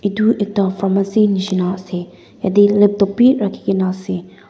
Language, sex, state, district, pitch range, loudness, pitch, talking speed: Nagamese, female, Nagaland, Dimapur, 190-205 Hz, -16 LUFS, 195 Hz, 135 wpm